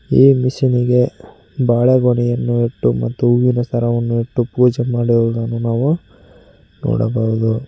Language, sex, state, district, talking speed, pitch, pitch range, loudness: Kannada, male, Karnataka, Koppal, 100 wpm, 120 Hz, 115-125 Hz, -16 LUFS